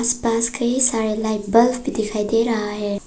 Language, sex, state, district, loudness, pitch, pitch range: Hindi, female, Arunachal Pradesh, Papum Pare, -19 LUFS, 225 Hz, 215-235 Hz